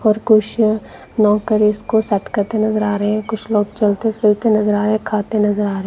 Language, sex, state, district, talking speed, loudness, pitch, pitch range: Hindi, female, Punjab, Kapurthala, 215 wpm, -17 LUFS, 215 Hz, 210-220 Hz